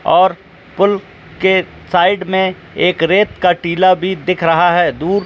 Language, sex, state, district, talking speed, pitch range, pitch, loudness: Hindi, male, Jharkhand, Jamtara, 150 wpm, 175-190 Hz, 185 Hz, -14 LUFS